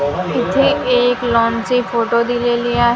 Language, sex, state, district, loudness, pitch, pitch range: Marathi, female, Maharashtra, Gondia, -16 LUFS, 240 Hz, 230-245 Hz